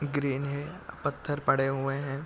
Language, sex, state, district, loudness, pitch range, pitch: Hindi, male, Chhattisgarh, Korba, -30 LUFS, 135-145 Hz, 140 Hz